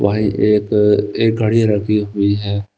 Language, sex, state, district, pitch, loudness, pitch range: Hindi, male, Himachal Pradesh, Shimla, 105 Hz, -16 LUFS, 100-105 Hz